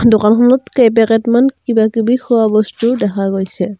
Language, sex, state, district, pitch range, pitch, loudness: Assamese, female, Assam, Kamrup Metropolitan, 215-240 Hz, 225 Hz, -13 LUFS